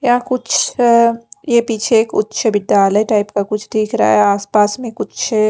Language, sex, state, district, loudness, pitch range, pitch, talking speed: Hindi, female, Punjab, Pathankot, -15 LUFS, 210-240 Hz, 220 Hz, 175 wpm